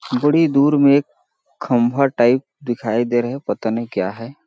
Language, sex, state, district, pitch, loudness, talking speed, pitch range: Hindi, male, Chhattisgarh, Balrampur, 125 Hz, -18 LUFS, 190 wpm, 120-140 Hz